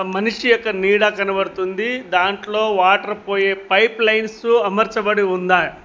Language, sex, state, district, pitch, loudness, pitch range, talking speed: Telugu, male, Telangana, Mahabubabad, 205 Hz, -17 LUFS, 190-220 Hz, 115 wpm